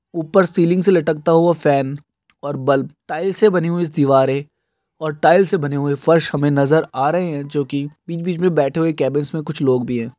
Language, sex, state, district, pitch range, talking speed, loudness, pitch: Hindi, male, Andhra Pradesh, Guntur, 140-170 Hz, 215 wpm, -17 LUFS, 155 Hz